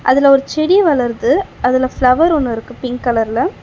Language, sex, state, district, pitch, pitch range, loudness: Tamil, female, Tamil Nadu, Chennai, 255 Hz, 245-290 Hz, -14 LUFS